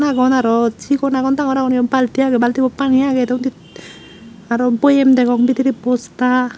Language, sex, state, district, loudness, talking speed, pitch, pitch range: Chakma, female, Tripura, Unakoti, -15 LUFS, 165 wpm, 255 Hz, 240-265 Hz